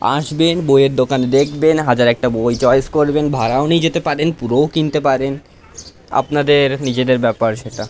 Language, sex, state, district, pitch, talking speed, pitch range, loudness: Bengali, male, West Bengal, North 24 Parganas, 135 Hz, 150 wpm, 125-150 Hz, -15 LUFS